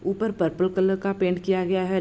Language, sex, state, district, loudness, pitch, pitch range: Hindi, female, Bihar, Begusarai, -24 LUFS, 190 Hz, 185-195 Hz